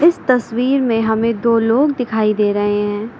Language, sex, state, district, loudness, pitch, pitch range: Hindi, female, Uttar Pradesh, Lucknow, -16 LUFS, 230 Hz, 215-250 Hz